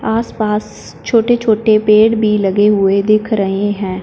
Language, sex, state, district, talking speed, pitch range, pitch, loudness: Hindi, female, Punjab, Fazilka, 165 wpm, 205-220 Hz, 215 Hz, -13 LUFS